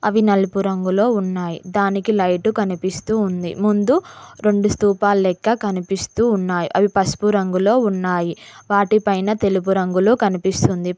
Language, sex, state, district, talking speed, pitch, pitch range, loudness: Telugu, female, Telangana, Mahabubabad, 120 wpm, 195 Hz, 185-210 Hz, -18 LUFS